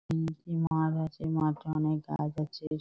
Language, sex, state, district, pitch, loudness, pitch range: Bengali, female, West Bengal, Dakshin Dinajpur, 155 Hz, -32 LUFS, 155-160 Hz